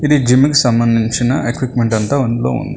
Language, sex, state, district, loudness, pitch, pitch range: Telugu, male, Telangana, Hyderabad, -14 LUFS, 120 Hz, 115-135 Hz